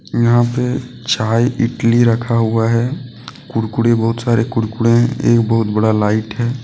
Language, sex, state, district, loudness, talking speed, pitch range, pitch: Hindi, male, Jharkhand, Deoghar, -15 LUFS, 145 wpm, 115-120 Hz, 115 Hz